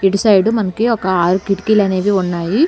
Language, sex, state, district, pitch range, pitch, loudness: Telugu, female, Telangana, Hyderabad, 190-215 Hz, 195 Hz, -15 LUFS